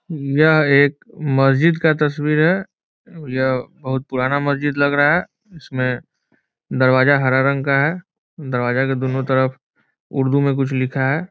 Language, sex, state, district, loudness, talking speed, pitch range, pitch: Hindi, male, Bihar, Muzaffarpur, -18 LUFS, 150 wpm, 130-155 Hz, 140 Hz